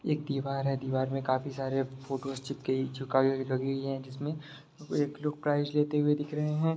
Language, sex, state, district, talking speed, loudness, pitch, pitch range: Hindi, male, Bihar, Darbhanga, 170 wpm, -32 LUFS, 135 Hz, 135-150 Hz